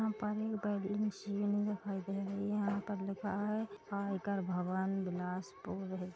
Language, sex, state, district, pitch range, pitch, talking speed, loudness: Hindi, female, Chhattisgarh, Bilaspur, 195-205 Hz, 200 Hz, 175 wpm, -38 LUFS